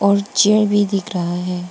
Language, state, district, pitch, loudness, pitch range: Hindi, Arunachal Pradesh, Papum Pare, 200 Hz, -17 LUFS, 180-205 Hz